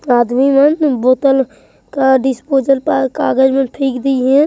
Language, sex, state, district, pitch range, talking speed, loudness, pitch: Hindi, male, Chhattisgarh, Jashpur, 260-275 Hz, 135 wpm, -13 LUFS, 270 Hz